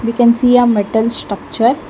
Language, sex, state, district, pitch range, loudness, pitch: English, female, Karnataka, Bangalore, 225-245 Hz, -13 LUFS, 235 Hz